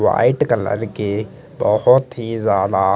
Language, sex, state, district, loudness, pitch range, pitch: Hindi, male, Chandigarh, Chandigarh, -18 LUFS, 100-120 Hz, 105 Hz